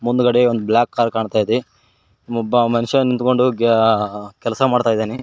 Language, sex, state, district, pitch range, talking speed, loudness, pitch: Kannada, male, Karnataka, Koppal, 110-125 Hz, 150 wpm, -17 LUFS, 115 Hz